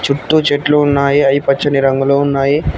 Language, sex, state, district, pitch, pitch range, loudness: Telugu, male, Telangana, Mahabubabad, 140 Hz, 135-145 Hz, -13 LUFS